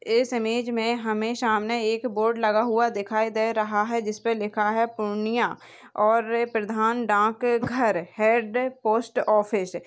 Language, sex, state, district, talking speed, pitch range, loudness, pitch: Hindi, female, Bihar, Purnia, 150 wpm, 215-235 Hz, -24 LUFS, 225 Hz